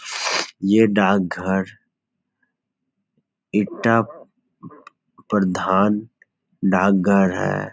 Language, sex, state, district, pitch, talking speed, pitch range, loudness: Hindi, male, Uttar Pradesh, Etah, 100 Hz, 60 wpm, 95-105 Hz, -19 LUFS